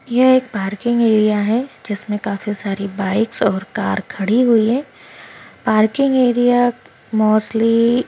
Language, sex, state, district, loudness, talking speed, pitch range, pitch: Hindi, female, Maharashtra, Pune, -17 LUFS, 135 wpm, 205-245 Hz, 220 Hz